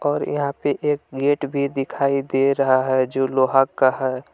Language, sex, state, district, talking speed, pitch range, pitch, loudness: Hindi, male, Jharkhand, Palamu, 195 wpm, 130-140 Hz, 135 Hz, -20 LUFS